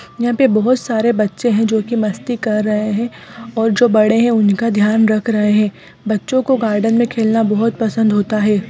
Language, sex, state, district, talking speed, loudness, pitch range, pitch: Hindi, female, Chhattisgarh, Rajnandgaon, 205 wpm, -15 LUFS, 215-235 Hz, 220 Hz